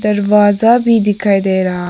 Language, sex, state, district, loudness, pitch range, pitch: Hindi, female, Arunachal Pradesh, Papum Pare, -12 LUFS, 190-210 Hz, 205 Hz